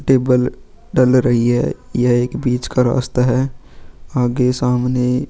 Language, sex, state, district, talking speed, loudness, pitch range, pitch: Hindi, male, Goa, North and South Goa, 135 wpm, -17 LUFS, 125-130 Hz, 125 Hz